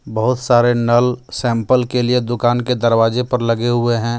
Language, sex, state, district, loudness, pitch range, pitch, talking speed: Hindi, male, Jharkhand, Deoghar, -16 LUFS, 115-125 Hz, 120 Hz, 185 wpm